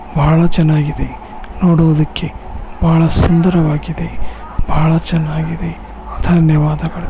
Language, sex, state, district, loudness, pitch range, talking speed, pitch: Kannada, male, Karnataka, Bellary, -14 LUFS, 155-170 Hz, 70 wpm, 160 Hz